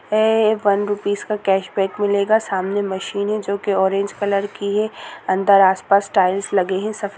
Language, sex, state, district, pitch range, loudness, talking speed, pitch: Hindi, female, Chhattisgarh, Korba, 195-205 Hz, -19 LUFS, 190 wpm, 200 Hz